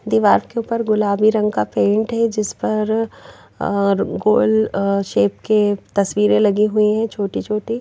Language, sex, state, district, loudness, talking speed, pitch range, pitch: Hindi, female, Odisha, Nuapada, -18 LUFS, 145 wpm, 200-220 Hz, 210 Hz